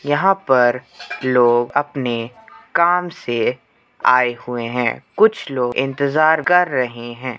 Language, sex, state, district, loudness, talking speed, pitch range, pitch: Hindi, male, Uttar Pradesh, Hamirpur, -18 LUFS, 120 wpm, 120-160 Hz, 130 Hz